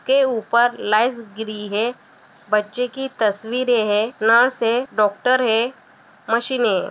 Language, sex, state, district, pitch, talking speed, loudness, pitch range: Hindi, female, Bihar, Darbhanga, 230 Hz, 130 wpm, -19 LUFS, 215-250 Hz